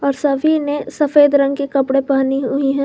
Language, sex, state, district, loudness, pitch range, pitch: Hindi, female, Jharkhand, Garhwa, -16 LUFS, 275-290 Hz, 280 Hz